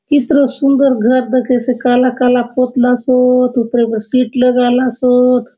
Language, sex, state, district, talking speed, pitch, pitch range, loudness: Halbi, female, Chhattisgarh, Bastar, 130 wpm, 250 Hz, 245-255 Hz, -12 LUFS